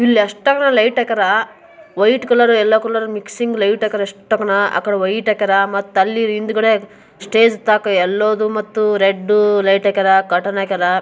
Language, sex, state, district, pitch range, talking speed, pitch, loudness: Kannada, female, Karnataka, Bijapur, 200-220 Hz, 135 wpm, 210 Hz, -15 LUFS